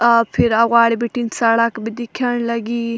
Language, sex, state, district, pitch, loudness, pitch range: Garhwali, female, Uttarakhand, Tehri Garhwal, 230 Hz, -17 LUFS, 230-235 Hz